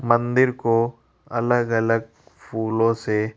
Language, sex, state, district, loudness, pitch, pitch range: Hindi, male, Rajasthan, Jaipur, -21 LUFS, 115 Hz, 110-120 Hz